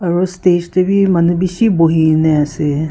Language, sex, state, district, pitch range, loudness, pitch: Nagamese, female, Nagaland, Kohima, 160-185 Hz, -13 LUFS, 175 Hz